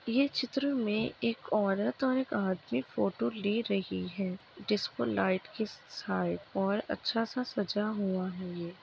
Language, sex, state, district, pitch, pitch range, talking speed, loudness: Hindi, female, Maharashtra, Dhule, 205 Hz, 185-230 Hz, 155 wpm, -33 LUFS